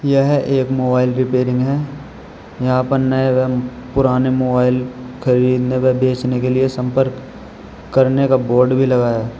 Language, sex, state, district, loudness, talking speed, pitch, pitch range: Hindi, male, Uttar Pradesh, Shamli, -16 LUFS, 145 wpm, 130 Hz, 125-130 Hz